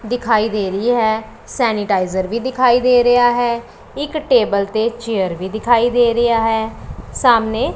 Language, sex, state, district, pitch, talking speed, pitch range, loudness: Punjabi, female, Punjab, Pathankot, 230 Hz, 155 wpm, 220-245 Hz, -16 LUFS